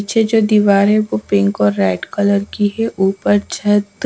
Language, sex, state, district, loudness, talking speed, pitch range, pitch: Hindi, female, Punjab, Pathankot, -15 LUFS, 190 wpm, 190-210 Hz, 205 Hz